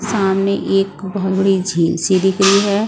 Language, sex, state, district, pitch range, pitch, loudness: Hindi, female, Punjab, Pathankot, 190-200 Hz, 195 Hz, -16 LUFS